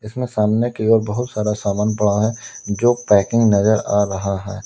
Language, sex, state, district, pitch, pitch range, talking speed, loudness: Hindi, male, Uttar Pradesh, Lalitpur, 105 Hz, 100-115 Hz, 195 wpm, -18 LUFS